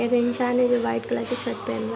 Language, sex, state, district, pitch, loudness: Hindi, female, Jharkhand, Jamtara, 240 Hz, -24 LUFS